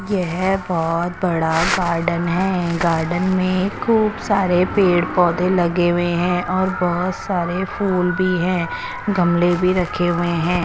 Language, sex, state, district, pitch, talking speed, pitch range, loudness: Hindi, female, Chandigarh, Chandigarh, 180 Hz, 140 wpm, 175-185 Hz, -19 LUFS